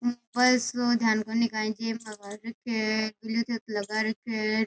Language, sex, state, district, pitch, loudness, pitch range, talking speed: Rajasthani, female, Rajasthan, Nagaur, 225 Hz, -28 LUFS, 215-235 Hz, 105 wpm